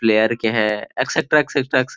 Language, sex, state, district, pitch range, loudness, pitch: Hindi, male, Bihar, Gopalganj, 110-140 Hz, -19 LUFS, 130 Hz